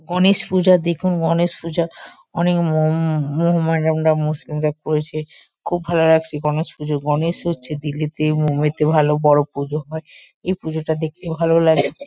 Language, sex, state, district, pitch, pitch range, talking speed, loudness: Bengali, female, West Bengal, Kolkata, 160 Hz, 150-170 Hz, 140 wpm, -19 LUFS